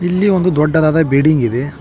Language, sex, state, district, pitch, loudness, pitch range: Kannada, male, Karnataka, Koppal, 155 Hz, -13 LUFS, 140-175 Hz